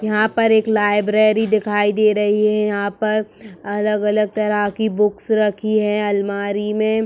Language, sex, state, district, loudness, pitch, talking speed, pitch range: Hindi, female, Uttar Pradesh, Etah, -18 LUFS, 210 Hz, 155 wpm, 205-215 Hz